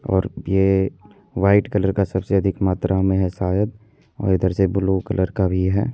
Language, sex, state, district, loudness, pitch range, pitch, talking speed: Hindi, male, Bihar, Purnia, -20 LUFS, 95-100 Hz, 95 Hz, 190 wpm